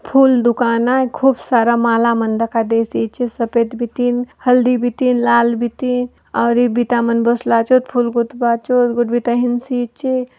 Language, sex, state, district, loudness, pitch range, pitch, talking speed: Halbi, female, Chhattisgarh, Bastar, -16 LUFS, 235-250 Hz, 240 Hz, 150 wpm